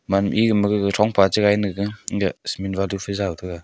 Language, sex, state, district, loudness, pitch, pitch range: Wancho, male, Arunachal Pradesh, Longding, -21 LUFS, 100 Hz, 95-105 Hz